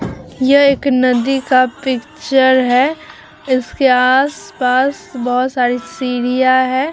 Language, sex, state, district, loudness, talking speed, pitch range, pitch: Hindi, female, Bihar, Vaishali, -14 LUFS, 115 wpm, 255-275 Hz, 260 Hz